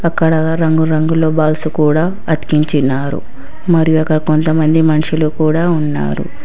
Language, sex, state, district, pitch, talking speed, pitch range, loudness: Telugu, female, Telangana, Hyderabad, 155 Hz, 110 wpm, 155-160 Hz, -14 LUFS